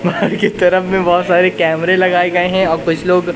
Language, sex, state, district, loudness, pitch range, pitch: Hindi, male, Madhya Pradesh, Katni, -13 LUFS, 175-185 Hz, 180 Hz